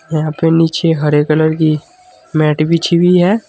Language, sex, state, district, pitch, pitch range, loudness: Hindi, male, Uttar Pradesh, Saharanpur, 160 Hz, 155-170 Hz, -13 LUFS